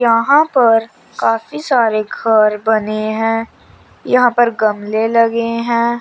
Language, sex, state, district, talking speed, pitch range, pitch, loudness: Hindi, female, Chandigarh, Chandigarh, 120 wpm, 220-240 Hz, 230 Hz, -14 LUFS